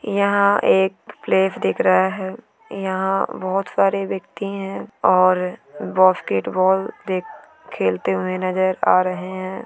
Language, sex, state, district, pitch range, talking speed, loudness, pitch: Hindi, female, Chhattisgarh, Bilaspur, 185-195 Hz, 135 wpm, -20 LUFS, 190 Hz